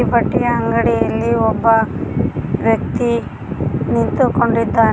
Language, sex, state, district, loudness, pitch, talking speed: Kannada, female, Karnataka, Koppal, -16 LUFS, 220 Hz, 60 wpm